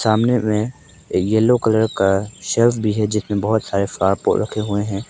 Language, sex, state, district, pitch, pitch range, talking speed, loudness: Hindi, male, Arunachal Pradesh, Papum Pare, 105 Hz, 100-110 Hz, 190 wpm, -19 LUFS